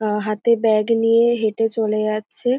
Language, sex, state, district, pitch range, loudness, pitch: Bengali, female, West Bengal, North 24 Parganas, 215-230 Hz, -18 LUFS, 220 Hz